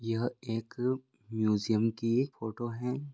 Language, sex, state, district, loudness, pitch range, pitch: Hindi, male, Bihar, Vaishali, -33 LUFS, 115-125 Hz, 115 Hz